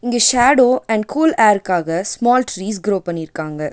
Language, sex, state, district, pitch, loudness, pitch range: Tamil, female, Tamil Nadu, Nilgiris, 210 Hz, -16 LUFS, 180-245 Hz